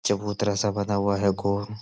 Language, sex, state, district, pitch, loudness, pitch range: Hindi, male, Uttar Pradesh, Budaun, 100 Hz, -25 LUFS, 100-105 Hz